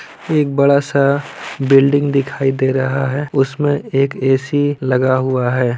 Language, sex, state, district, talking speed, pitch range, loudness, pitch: Hindi, male, Bihar, Lakhisarai, 135 wpm, 130-145 Hz, -16 LUFS, 135 Hz